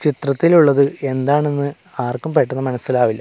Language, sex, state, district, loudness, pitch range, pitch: Malayalam, male, Kerala, Kasaragod, -17 LUFS, 130-150 Hz, 140 Hz